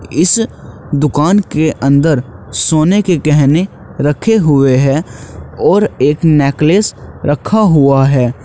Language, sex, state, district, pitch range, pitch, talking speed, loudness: Hindi, male, Uttar Pradesh, Shamli, 135-170 Hz, 150 Hz, 115 wpm, -12 LUFS